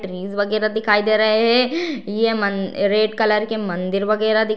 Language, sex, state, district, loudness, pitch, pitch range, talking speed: Hindi, female, Bihar, Darbhanga, -19 LUFS, 215 Hz, 205-220 Hz, 195 wpm